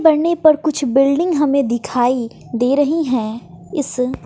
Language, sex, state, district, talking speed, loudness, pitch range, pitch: Hindi, female, Bihar, West Champaran, 140 wpm, -17 LUFS, 245-310 Hz, 275 Hz